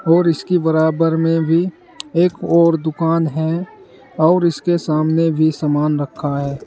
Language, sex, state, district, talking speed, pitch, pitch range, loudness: Hindi, male, Uttar Pradesh, Saharanpur, 145 wpm, 165 Hz, 155-170 Hz, -17 LUFS